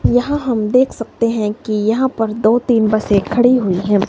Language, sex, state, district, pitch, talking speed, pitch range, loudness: Hindi, female, Himachal Pradesh, Shimla, 225 Hz, 220 wpm, 215-245 Hz, -15 LUFS